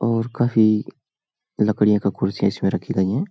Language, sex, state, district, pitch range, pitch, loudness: Hindi, male, Uttar Pradesh, Hamirpur, 105-115 Hz, 110 Hz, -20 LUFS